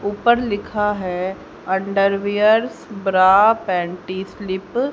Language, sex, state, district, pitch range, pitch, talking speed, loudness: Hindi, female, Haryana, Jhajjar, 190-210 Hz, 200 Hz, 95 wpm, -19 LUFS